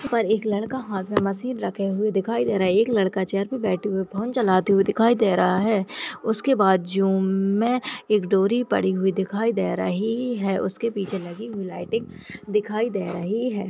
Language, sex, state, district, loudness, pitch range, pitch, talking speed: Hindi, female, Uttarakhand, Tehri Garhwal, -23 LUFS, 195-225 Hz, 205 Hz, 200 wpm